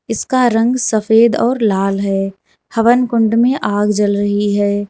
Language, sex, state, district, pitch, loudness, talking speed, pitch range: Hindi, female, Uttar Pradesh, Lalitpur, 220 Hz, -14 LUFS, 145 wpm, 205-235 Hz